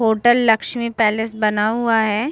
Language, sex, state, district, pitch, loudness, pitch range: Hindi, female, Chhattisgarh, Bastar, 225 Hz, -17 LUFS, 215-235 Hz